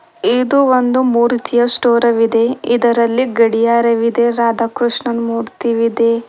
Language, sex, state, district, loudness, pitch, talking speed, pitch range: Kannada, female, Karnataka, Bidar, -14 LUFS, 235 Hz, 85 wpm, 230-245 Hz